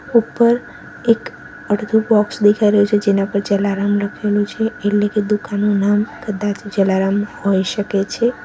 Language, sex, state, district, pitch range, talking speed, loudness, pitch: Gujarati, female, Gujarat, Valsad, 205-215 Hz, 150 wpm, -17 LUFS, 205 Hz